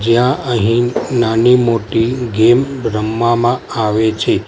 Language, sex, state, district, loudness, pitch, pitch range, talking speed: Gujarati, male, Gujarat, Valsad, -14 LUFS, 115 Hz, 115-125 Hz, 95 wpm